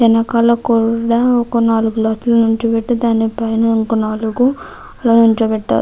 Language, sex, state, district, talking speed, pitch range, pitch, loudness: Telugu, female, Andhra Pradesh, Krishna, 105 wpm, 225-235 Hz, 230 Hz, -14 LUFS